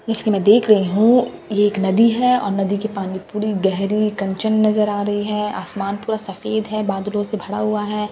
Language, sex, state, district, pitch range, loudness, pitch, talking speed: Hindi, female, Bihar, Katihar, 200-215 Hz, -19 LUFS, 210 Hz, 235 wpm